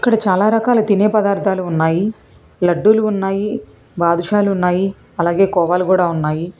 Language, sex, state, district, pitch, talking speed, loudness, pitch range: Telugu, female, Telangana, Hyderabad, 195 Hz, 125 wpm, -16 LUFS, 175-210 Hz